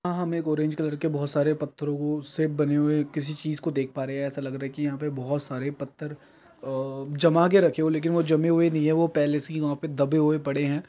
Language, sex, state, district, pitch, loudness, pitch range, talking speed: Hindi, male, Andhra Pradesh, Chittoor, 150 Hz, -26 LUFS, 145-155 Hz, 260 wpm